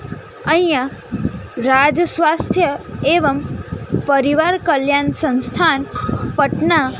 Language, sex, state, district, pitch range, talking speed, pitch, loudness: Gujarati, female, Gujarat, Gandhinagar, 275-325 Hz, 70 wpm, 295 Hz, -17 LUFS